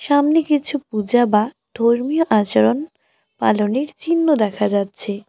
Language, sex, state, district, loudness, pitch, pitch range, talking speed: Bengali, female, West Bengal, Alipurduar, -18 LUFS, 240 Hz, 210-290 Hz, 115 wpm